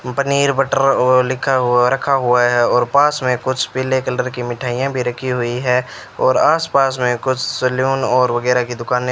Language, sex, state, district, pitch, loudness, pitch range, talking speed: Hindi, male, Rajasthan, Bikaner, 125 Hz, -16 LUFS, 125-135 Hz, 205 wpm